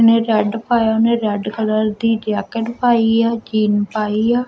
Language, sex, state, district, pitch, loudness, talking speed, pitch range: Punjabi, female, Punjab, Kapurthala, 225 Hz, -17 LUFS, 175 wpm, 215-230 Hz